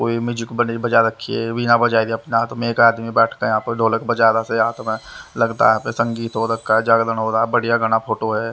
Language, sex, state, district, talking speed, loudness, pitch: Hindi, male, Haryana, Rohtak, 255 wpm, -18 LUFS, 115 Hz